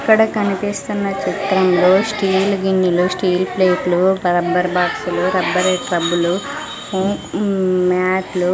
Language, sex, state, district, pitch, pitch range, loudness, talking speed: Telugu, female, Andhra Pradesh, Sri Satya Sai, 185 Hz, 180-195 Hz, -17 LUFS, 105 wpm